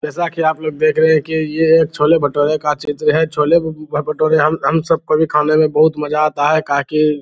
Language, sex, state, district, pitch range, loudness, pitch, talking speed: Hindi, male, Bihar, Lakhisarai, 150-160 Hz, -15 LUFS, 155 Hz, 240 wpm